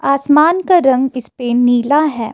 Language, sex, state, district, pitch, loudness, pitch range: Hindi, female, Himachal Pradesh, Shimla, 270 Hz, -13 LUFS, 245-300 Hz